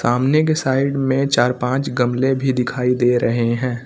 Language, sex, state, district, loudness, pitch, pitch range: Hindi, male, Uttar Pradesh, Lucknow, -18 LUFS, 125 Hz, 125-135 Hz